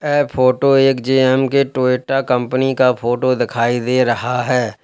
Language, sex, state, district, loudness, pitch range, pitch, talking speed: Hindi, male, Uttar Pradesh, Lalitpur, -16 LUFS, 125-135 Hz, 130 Hz, 160 wpm